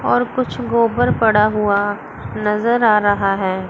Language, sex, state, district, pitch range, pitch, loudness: Hindi, female, Chandigarh, Chandigarh, 200-230 Hz, 210 Hz, -16 LUFS